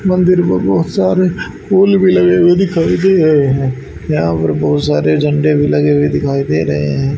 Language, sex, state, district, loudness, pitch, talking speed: Hindi, male, Haryana, Rohtak, -12 LUFS, 145 Hz, 200 wpm